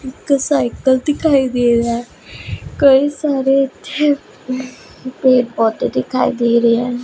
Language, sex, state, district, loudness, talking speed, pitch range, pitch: Punjabi, female, Punjab, Pathankot, -15 LUFS, 120 wpm, 240-280 Hz, 260 Hz